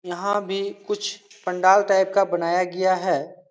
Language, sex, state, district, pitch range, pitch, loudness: Hindi, male, Bihar, Supaul, 185-200 Hz, 190 Hz, -22 LUFS